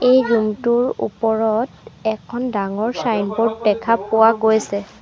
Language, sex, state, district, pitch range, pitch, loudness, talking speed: Assamese, female, Assam, Sonitpur, 215-230 Hz, 220 Hz, -19 LUFS, 120 wpm